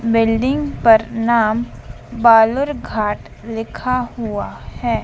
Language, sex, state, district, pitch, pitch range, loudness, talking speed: Hindi, female, Madhya Pradesh, Dhar, 230 Hz, 225-245 Hz, -17 LUFS, 85 wpm